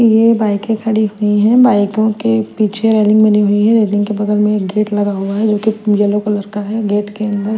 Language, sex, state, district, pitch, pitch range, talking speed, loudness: Hindi, female, Chandigarh, Chandigarh, 210 Hz, 205-215 Hz, 240 wpm, -13 LUFS